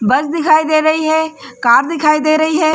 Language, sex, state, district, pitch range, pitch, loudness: Hindi, female, Chhattisgarh, Rajnandgaon, 300-315 Hz, 310 Hz, -13 LUFS